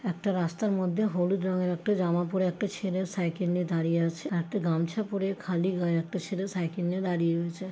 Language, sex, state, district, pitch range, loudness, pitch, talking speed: Bengali, female, West Bengal, Paschim Medinipur, 170-190 Hz, -29 LUFS, 180 Hz, 195 wpm